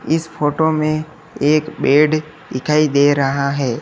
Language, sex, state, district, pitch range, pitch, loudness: Hindi, male, Uttar Pradesh, Lalitpur, 140-155 Hz, 150 Hz, -16 LUFS